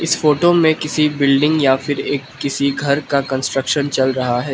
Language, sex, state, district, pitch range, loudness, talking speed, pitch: Hindi, male, Manipur, Imphal West, 135-150 Hz, -16 LUFS, 200 wpm, 140 Hz